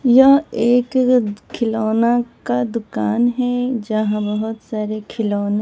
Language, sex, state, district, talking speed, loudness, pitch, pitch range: Hindi, female, Bihar, West Champaran, 105 wpm, -18 LUFS, 230 Hz, 210-245 Hz